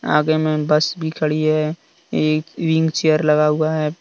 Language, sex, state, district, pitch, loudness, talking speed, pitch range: Hindi, male, Jharkhand, Deoghar, 155 Hz, -18 LUFS, 180 wpm, 150-160 Hz